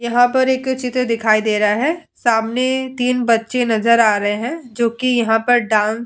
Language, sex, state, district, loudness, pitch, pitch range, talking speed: Hindi, female, Uttar Pradesh, Etah, -17 LUFS, 240 Hz, 225-255 Hz, 210 wpm